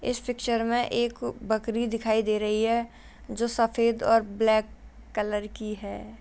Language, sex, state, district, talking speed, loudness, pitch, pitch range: Hindi, female, Uttar Pradesh, Jalaun, 165 wpm, -27 LUFS, 225 Hz, 215-235 Hz